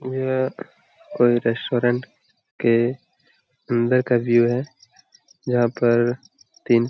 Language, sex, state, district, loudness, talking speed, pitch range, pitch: Hindi, male, Jharkhand, Jamtara, -21 LUFS, 95 wpm, 120-130 Hz, 120 Hz